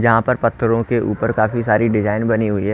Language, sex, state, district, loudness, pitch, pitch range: Hindi, male, Haryana, Rohtak, -17 LUFS, 115 Hz, 105-115 Hz